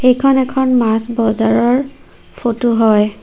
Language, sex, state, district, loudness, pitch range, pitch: Assamese, female, Assam, Sonitpur, -14 LUFS, 225-255 Hz, 235 Hz